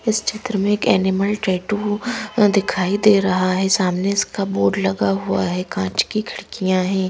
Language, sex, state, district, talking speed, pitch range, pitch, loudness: Hindi, female, Madhya Pradesh, Bhopal, 170 wpm, 185-210 Hz, 195 Hz, -19 LUFS